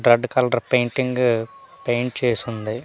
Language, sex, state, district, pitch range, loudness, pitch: Telugu, male, Andhra Pradesh, Manyam, 120-125 Hz, -21 LUFS, 120 Hz